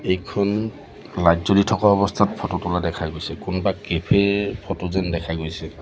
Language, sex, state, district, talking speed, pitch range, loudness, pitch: Assamese, male, Assam, Sonitpur, 165 wpm, 85-100 Hz, -21 LUFS, 90 Hz